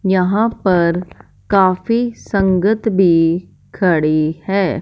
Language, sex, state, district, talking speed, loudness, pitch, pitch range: Hindi, male, Punjab, Fazilka, 85 wpm, -16 LUFS, 185 Hz, 170-200 Hz